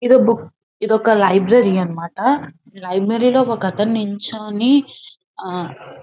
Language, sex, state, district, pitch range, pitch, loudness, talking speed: Telugu, female, Andhra Pradesh, Visakhapatnam, 190-240 Hz, 215 Hz, -17 LUFS, 140 wpm